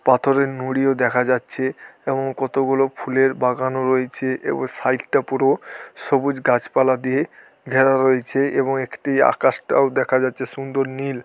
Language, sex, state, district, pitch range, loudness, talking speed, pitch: Bengali, male, West Bengal, Dakshin Dinajpur, 130-135 Hz, -20 LUFS, 135 wpm, 130 Hz